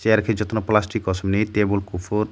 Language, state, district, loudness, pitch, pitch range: Kokborok, Tripura, Dhalai, -22 LUFS, 105 Hz, 100-110 Hz